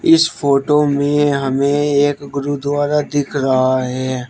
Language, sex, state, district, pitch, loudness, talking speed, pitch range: Hindi, male, Uttar Pradesh, Shamli, 145 Hz, -16 LUFS, 125 wpm, 135-145 Hz